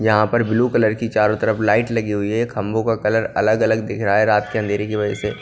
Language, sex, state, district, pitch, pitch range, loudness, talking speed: Hindi, male, Punjab, Kapurthala, 110 Hz, 105-115 Hz, -19 LUFS, 265 wpm